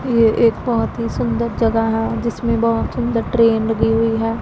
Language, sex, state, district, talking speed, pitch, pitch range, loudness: Hindi, female, Punjab, Pathankot, 190 wpm, 225 Hz, 225-230 Hz, -17 LUFS